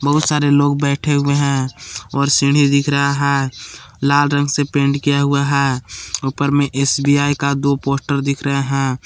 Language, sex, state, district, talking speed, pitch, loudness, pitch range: Hindi, male, Jharkhand, Palamu, 180 wpm, 140 Hz, -16 LUFS, 140-145 Hz